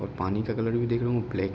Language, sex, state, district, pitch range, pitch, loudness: Hindi, male, Uttar Pradesh, Ghazipur, 95-120 Hz, 115 Hz, -28 LUFS